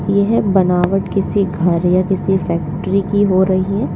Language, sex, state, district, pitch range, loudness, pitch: Hindi, female, Uttar Pradesh, Lalitpur, 180-195 Hz, -15 LUFS, 190 Hz